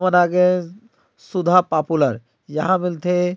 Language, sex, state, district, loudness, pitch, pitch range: Chhattisgarhi, male, Chhattisgarh, Rajnandgaon, -19 LUFS, 180 Hz, 160-180 Hz